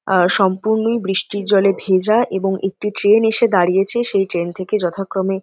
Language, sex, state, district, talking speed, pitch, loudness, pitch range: Bengali, female, West Bengal, North 24 Parganas, 155 wpm, 195 Hz, -17 LUFS, 190-215 Hz